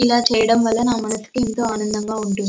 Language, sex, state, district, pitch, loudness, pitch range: Telugu, female, Andhra Pradesh, Anantapur, 225 Hz, -19 LUFS, 215-235 Hz